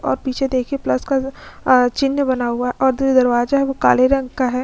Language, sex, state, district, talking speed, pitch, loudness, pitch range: Hindi, female, Uttar Pradesh, Etah, 245 wpm, 260 Hz, -17 LUFS, 250-270 Hz